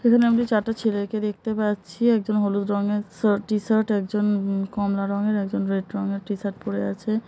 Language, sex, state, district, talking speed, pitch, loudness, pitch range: Bengali, male, West Bengal, Jhargram, 180 wpm, 210 Hz, -24 LUFS, 200-215 Hz